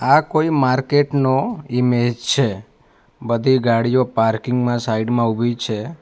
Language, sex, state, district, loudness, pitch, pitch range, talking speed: Gujarati, male, Gujarat, Valsad, -18 LUFS, 125 Hz, 115-135 Hz, 140 wpm